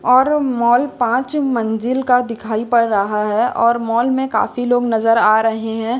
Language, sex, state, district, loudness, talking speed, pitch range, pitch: Hindi, female, Uttar Pradesh, Lucknow, -16 LUFS, 180 wpm, 225-250 Hz, 235 Hz